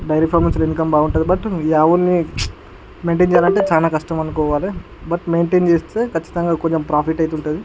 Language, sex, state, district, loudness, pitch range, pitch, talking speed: Telugu, male, Andhra Pradesh, Guntur, -17 LUFS, 155-170 Hz, 165 Hz, 180 wpm